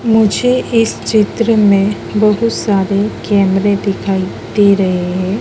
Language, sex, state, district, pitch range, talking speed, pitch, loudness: Hindi, female, Madhya Pradesh, Dhar, 195-220 Hz, 120 wpm, 205 Hz, -13 LUFS